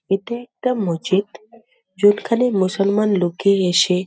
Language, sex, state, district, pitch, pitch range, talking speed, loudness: Bengali, female, West Bengal, Dakshin Dinajpur, 200 Hz, 185-225 Hz, 120 wpm, -18 LUFS